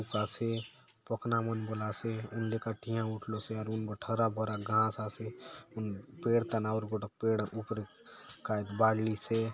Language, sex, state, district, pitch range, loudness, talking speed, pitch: Halbi, male, Chhattisgarh, Bastar, 110-115 Hz, -35 LUFS, 150 wpm, 110 Hz